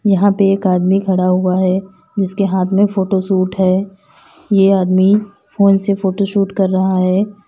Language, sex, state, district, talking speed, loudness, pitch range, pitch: Hindi, female, Uttar Pradesh, Lalitpur, 175 wpm, -14 LUFS, 185-200 Hz, 195 Hz